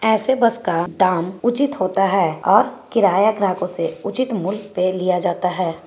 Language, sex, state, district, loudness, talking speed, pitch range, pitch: Magahi, female, Bihar, Gaya, -19 LUFS, 185 wpm, 180-220 Hz, 190 Hz